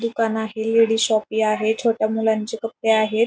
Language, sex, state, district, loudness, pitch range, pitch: Marathi, female, Maharashtra, Pune, -20 LUFS, 220-225 Hz, 220 Hz